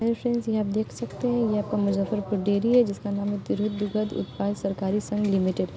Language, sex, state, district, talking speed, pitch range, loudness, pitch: Hindi, female, Bihar, Muzaffarpur, 230 wpm, 200-220 Hz, -26 LUFS, 205 Hz